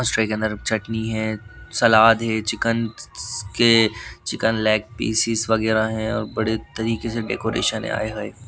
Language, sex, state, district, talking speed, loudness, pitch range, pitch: Hindi, male, Bihar, Katihar, 170 wpm, -21 LUFS, 110-115 Hz, 110 Hz